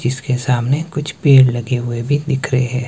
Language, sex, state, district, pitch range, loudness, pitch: Hindi, male, Himachal Pradesh, Shimla, 125-145 Hz, -16 LUFS, 130 Hz